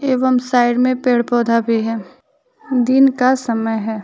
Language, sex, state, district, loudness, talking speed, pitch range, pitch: Hindi, female, Jharkhand, Deoghar, -16 LUFS, 165 wpm, 230-260 Hz, 245 Hz